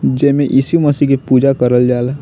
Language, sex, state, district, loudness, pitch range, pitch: Bhojpuri, male, Bihar, Muzaffarpur, -12 LUFS, 125-140 Hz, 135 Hz